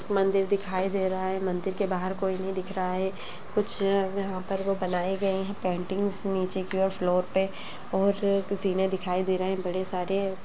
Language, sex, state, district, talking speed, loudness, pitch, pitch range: Kumaoni, female, Uttarakhand, Uttarkashi, 200 wpm, -27 LUFS, 190 Hz, 185-195 Hz